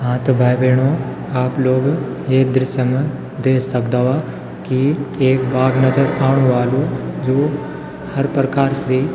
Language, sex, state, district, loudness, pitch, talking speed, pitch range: Garhwali, male, Uttarakhand, Tehri Garhwal, -17 LUFS, 130 Hz, 145 wpm, 130-135 Hz